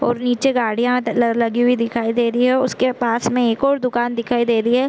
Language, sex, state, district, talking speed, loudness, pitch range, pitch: Hindi, female, Chhattisgarh, Korba, 270 wpm, -18 LUFS, 235-250 Hz, 240 Hz